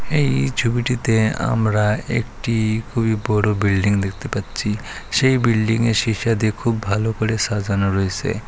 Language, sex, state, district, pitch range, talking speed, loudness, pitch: Bengali, male, West Bengal, Malda, 105-115 Hz, 140 wpm, -20 LUFS, 110 Hz